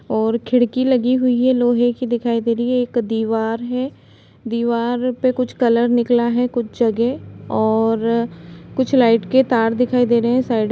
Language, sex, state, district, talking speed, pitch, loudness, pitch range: Hindi, female, Uttar Pradesh, Jalaun, 185 wpm, 240 Hz, -18 LUFS, 230-250 Hz